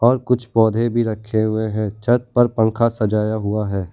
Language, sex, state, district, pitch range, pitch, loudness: Hindi, male, Gujarat, Valsad, 110-120 Hz, 110 Hz, -19 LUFS